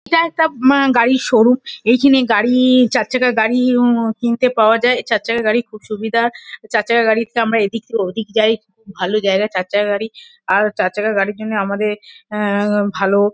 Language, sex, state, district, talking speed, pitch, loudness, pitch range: Bengali, female, West Bengal, Kolkata, 180 wpm, 225 Hz, -15 LUFS, 210-245 Hz